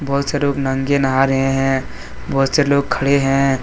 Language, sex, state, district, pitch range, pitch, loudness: Hindi, male, Jharkhand, Deoghar, 135-140 Hz, 135 Hz, -17 LUFS